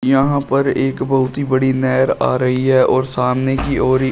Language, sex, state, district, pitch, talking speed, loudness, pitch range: Hindi, male, Uttar Pradesh, Shamli, 130 Hz, 230 wpm, -16 LUFS, 130-135 Hz